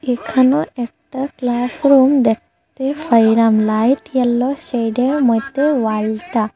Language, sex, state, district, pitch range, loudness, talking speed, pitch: Bengali, female, Assam, Hailakandi, 225-270 Hz, -16 LUFS, 90 wpm, 245 Hz